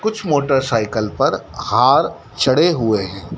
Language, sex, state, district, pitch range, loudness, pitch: Hindi, male, Madhya Pradesh, Dhar, 105-155 Hz, -17 LUFS, 120 Hz